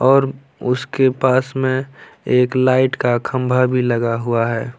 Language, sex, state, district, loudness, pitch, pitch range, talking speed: Hindi, male, Bihar, Lakhisarai, -17 LUFS, 130 Hz, 125-130 Hz, 150 wpm